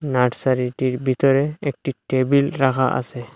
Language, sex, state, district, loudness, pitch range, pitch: Bengali, male, Assam, Hailakandi, -20 LUFS, 125-140 Hz, 130 Hz